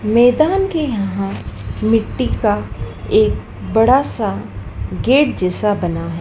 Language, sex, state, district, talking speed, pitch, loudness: Hindi, female, Madhya Pradesh, Dhar, 115 wpm, 165 Hz, -17 LUFS